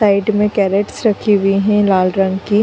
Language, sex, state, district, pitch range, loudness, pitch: Hindi, female, Bihar, Kishanganj, 195-210 Hz, -14 LUFS, 200 Hz